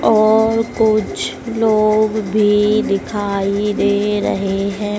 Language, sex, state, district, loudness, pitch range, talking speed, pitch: Hindi, female, Madhya Pradesh, Dhar, -16 LUFS, 205-215 Hz, 95 wpm, 210 Hz